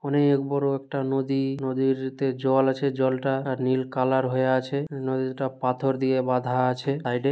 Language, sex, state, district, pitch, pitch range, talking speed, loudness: Bengali, male, West Bengal, Dakshin Dinajpur, 135 Hz, 130-135 Hz, 165 wpm, -25 LUFS